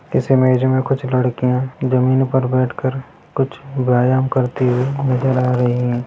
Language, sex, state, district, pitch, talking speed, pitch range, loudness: Hindi, male, Bihar, Sitamarhi, 130 Hz, 170 wpm, 125-130 Hz, -17 LUFS